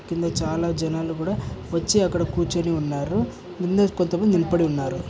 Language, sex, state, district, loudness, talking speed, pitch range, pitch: Telugu, male, Andhra Pradesh, Chittoor, -23 LUFS, 130 wpm, 160-180 Hz, 170 Hz